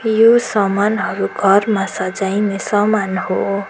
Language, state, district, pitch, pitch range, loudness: Nepali, West Bengal, Darjeeling, 200 Hz, 195-215 Hz, -16 LUFS